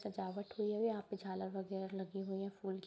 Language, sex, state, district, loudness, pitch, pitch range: Hindi, female, Bihar, Sitamarhi, -42 LUFS, 195 Hz, 190-205 Hz